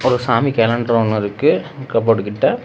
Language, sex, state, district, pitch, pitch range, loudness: Tamil, male, Tamil Nadu, Namakkal, 115 Hz, 110-125 Hz, -17 LUFS